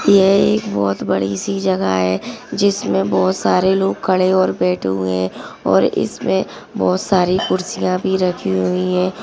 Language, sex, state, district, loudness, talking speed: Hindi, female, Maharashtra, Aurangabad, -17 LUFS, 160 wpm